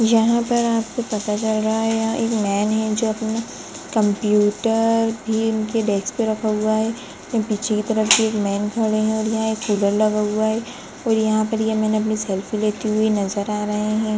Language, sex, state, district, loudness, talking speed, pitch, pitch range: Hindi, female, Uttarakhand, Tehri Garhwal, -20 LUFS, 205 wpm, 220 Hz, 210-225 Hz